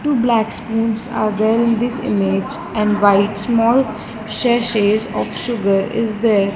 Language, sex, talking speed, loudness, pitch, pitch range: English, female, 145 wpm, -17 LUFS, 220 Hz, 210-235 Hz